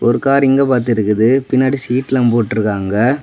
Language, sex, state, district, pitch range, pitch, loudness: Tamil, male, Tamil Nadu, Kanyakumari, 110-135 Hz, 125 Hz, -14 LUFS